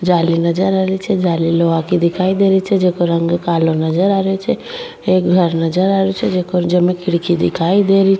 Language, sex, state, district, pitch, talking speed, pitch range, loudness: Rajasthani, female, Rajasthan, Churu, 180 Hz, 220 wpm, 170-195 Hz, -15 LUFS